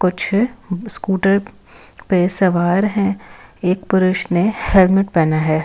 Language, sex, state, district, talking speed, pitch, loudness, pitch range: Hindi, female, Delhi, New Delhi, 115 wpm, 190 Hz, -17 LUFS, 180-200 Hz